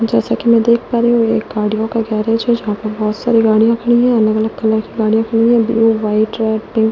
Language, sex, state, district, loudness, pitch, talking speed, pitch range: Hindi, female, Delhi, New Delhi, -14 LUFS, 225 Hz, 270 wpm, 220-230 Hz